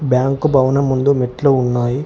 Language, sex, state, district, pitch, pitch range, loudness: Telugu, male, Telangana, Hyderabad, 135 Hz, 125-140 Hz, -15 LUFS